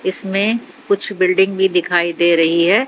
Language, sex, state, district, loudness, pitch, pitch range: Hindi, female, Haryana, Jhajjar, -15 LUFS, 190 Hz, 175-200 Hz